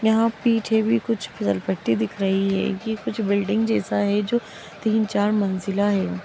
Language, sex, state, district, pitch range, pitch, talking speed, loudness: Magahi, female, Bihar, Gaya, 195-220 Hz, 205 Hz, 175 wpm, -22 LUFS